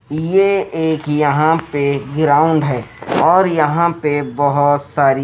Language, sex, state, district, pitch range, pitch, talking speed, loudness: Hindi, male, Himachal Pradesh, Shimla, 145-160 Hz, 150 Hz, 125 wpm, -15 LUFS